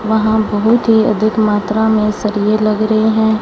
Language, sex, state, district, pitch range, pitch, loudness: Hindi, female, Punjab, Fazilka, 210-220 Hz, 215 Hz, -13 LUFS